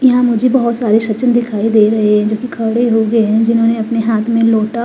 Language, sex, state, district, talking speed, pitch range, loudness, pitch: Hindi, female, Himachal Pradesh, Shimla, 245 wpm, 220-235 Hz, -13 LUFS, 230 Hz